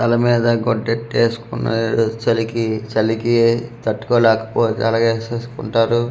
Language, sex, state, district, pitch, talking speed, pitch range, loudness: Telugu, male, Andhra Pradesh, Manyam, 115 Hz, 100 wpm, 115-120 Hz, -18 LUFS